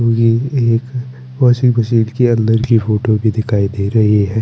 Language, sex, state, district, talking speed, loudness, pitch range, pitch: Hindi, male, Chandigarh, Chandigarh, 175 wpm, -14 LUFS, 110-120 Hz, 115 Hz